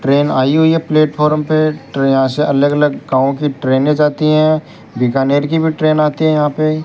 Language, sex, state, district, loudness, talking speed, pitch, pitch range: Hindi, male, Rajasthan, Bikaner, -14 LUFS, 220 wpm, 150 Hz, 135-155 Hz